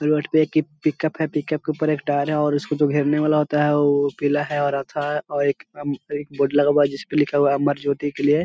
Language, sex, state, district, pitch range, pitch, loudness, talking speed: Hindi, male, Bihar, Jahanabad, 145-150 Hz, 145 Hz, -21 LUFS, 290 wpm